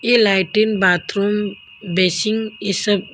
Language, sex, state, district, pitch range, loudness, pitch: Hindi, female, Haryana, Jhajjar, 190-215 Hz, -18 LUFS, 205 Hz